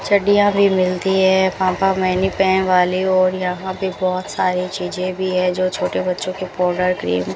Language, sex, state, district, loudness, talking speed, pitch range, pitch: Hindi, female, Rajasthan, Bikaner, -18 LUFS, 180 wpm, 180-190 Hz, 185 Hz